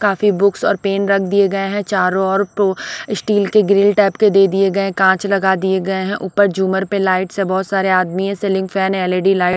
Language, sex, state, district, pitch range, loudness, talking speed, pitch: Hindi, female, Odisha, Sambalpur, 190-200 Hz, -16 LUFS, 240 wpm, 195 Hz